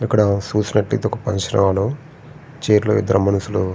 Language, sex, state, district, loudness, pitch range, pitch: Telugu, male, Andhra Pradesh, Srikakulam, -18 LUFS, 100-125 Hz, 105 Hz